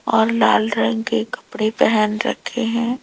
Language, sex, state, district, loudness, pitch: Hindi, female, Rajasthan, Jaipur, -19 LUFS, 215 Hz